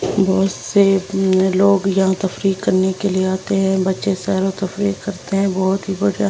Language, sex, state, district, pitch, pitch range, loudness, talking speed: Hindi, female, Delhi, New Delhi, 190 Hz, 190-195 Hz, -17 LUFS, 170 wpm